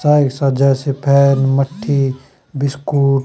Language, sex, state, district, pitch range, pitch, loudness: Hindi, male, Haryana, Charkhi Dadri, 135-140 Hz, 140 Hz, -15 LUFS